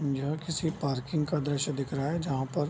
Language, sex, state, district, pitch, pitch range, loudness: Hindi, male, Bihar, Bhagalpur, 145 Hz, 140-155 Hz, -31 LUFS